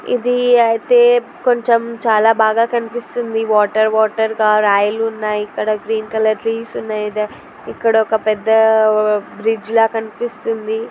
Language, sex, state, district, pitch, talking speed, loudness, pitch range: Telugu, female, Andhra Pradesh, Anantapur, 220 Hz, 120 wpm, -15 LUFS, 215-230 Hz